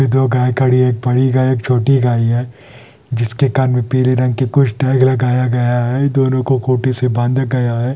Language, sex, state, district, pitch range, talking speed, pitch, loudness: Hindi, male, Andhra Pradesh, Anantapur, 125-130 Hz, 165 wpm, 130 Hz, -14 LUFS